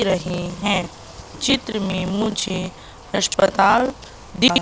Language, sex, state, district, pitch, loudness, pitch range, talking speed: Hindi, female, Madhya Pradesh, Katni, 190 Hz, -20 LUFS, 185-215 Hz, 90 wpm